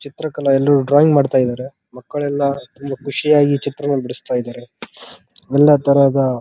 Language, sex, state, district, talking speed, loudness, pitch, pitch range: Kannada, male, Karnataka, Dharwad, 130 wpm, -16 LUFS, 140 Hz, 130-145 Hz